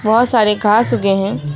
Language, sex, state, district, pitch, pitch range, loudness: Hindi, female, West Bengal, Alipurduar, 210 Hz, 195-225 Hz, -14 LUFS